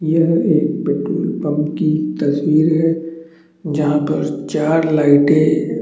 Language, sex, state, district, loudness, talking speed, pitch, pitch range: Hindi, male, Chhattisgarh, Bastar, -16 LUFS, 125 wpm, 155 Hz, 150-165 Hz